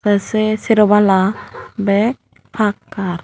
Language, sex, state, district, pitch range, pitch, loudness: Chakma, female, Tripura, Dhalai, 200-215 Hz, 210 Hz, -16 LUFS